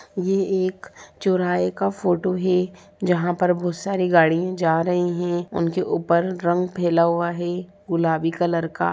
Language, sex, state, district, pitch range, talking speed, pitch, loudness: Hindi, female, Bihar, Sitamarhi, 170-185 Hz, 160 wpm, 175 Hz, -22 LUFS